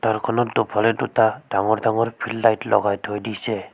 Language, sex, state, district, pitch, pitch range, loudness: Assamese, female, Assam, Sonitpur, 110 Hz, 105-115 Hz, -21 LUFS